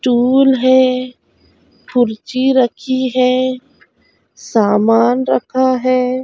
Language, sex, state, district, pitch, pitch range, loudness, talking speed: Hindi, female, Bihar, Jamui, 255 Hz, 245-260 Hz, -14 LUFS, 75 wpm